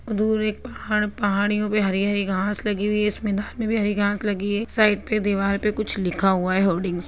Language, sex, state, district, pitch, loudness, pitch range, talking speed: Hindi, female, Bihar, Jamui, 205 Hz, -23 LUFS, 200-210 Hz, 245 wpm